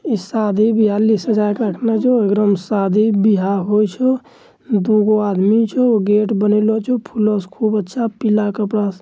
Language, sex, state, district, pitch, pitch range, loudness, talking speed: Angika, male, Bihar, Bhagalpur, 215 Hz, 205-225 Hz, -16 LUFS, 180 wpm